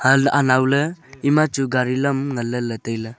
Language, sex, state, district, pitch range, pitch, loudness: Wancho, male, Arunachal Pradesh, Longding, 125-140 Hz, 135 Hz, -19 LUFS